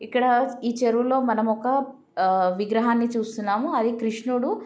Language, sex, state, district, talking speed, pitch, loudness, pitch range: Telugu, female, Andhra Pradesh, Guntur, 130 wpm, 235 Hz, -23 LUFS, 220-250 Hz